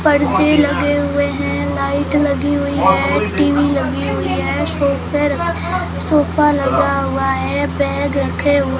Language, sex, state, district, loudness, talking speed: Hindi, female, Rajasthan, Jaisalmer, -16 LUFS, 135 wpm